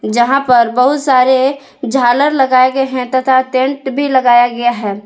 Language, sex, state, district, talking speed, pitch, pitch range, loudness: Hindi, female, Jharkhand, Palamu, 165 wpm, 260 Hz, 240-265 Hz, -12 LUFS